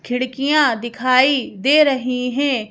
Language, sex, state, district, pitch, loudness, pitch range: Hindi, female, Madhya Pradesh, Bhopal, 255 Hz, -17 LUFS, 250-280 Hz